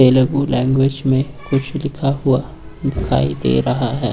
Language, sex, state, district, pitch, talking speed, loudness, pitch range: Hindi, male, Uttar Pradesh, Lucknow, 135 Hz, 145 wpm, -18 LUFS, 130-140 Hz